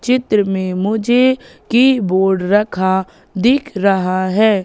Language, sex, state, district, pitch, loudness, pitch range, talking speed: Hindi, female, Madhya Pradesh, Katni, 205 Hz, -15 LUFS, 190-245 Hz, 105 wpm